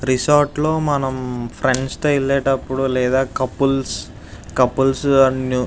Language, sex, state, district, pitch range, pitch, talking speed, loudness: Telugu, male, Andhra Pradesh, Visakhapatnam, 125-135 Hz, 130 Hz, 105 wpm, -18 LUFS